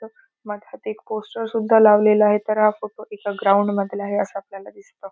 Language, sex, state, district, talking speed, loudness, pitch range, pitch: Marathi, female, Maharashtra, Solapur, 190 wpm, -19 LUFS, 205-220 Hz, 210 Hz